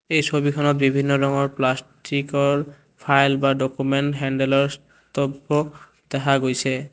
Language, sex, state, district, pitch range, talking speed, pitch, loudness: Assamese, male, Assam, Kamrup Metropolitan, 135-145 Hz, 105 wpm, 140 Hz, -21 LUFS